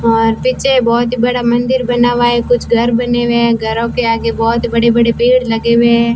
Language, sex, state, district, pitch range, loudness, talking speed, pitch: Hindi, female, Rajasthan, Bikaner, 230-245 Hz, -12 LUFS, 235 wpm, 235 Hz